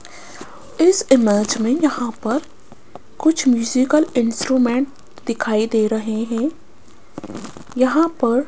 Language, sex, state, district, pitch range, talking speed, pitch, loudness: Hindi, female, Rajasthan, Jaipur, 230-290 Hz, 105 wpm, 255 Hz, -18 LUFS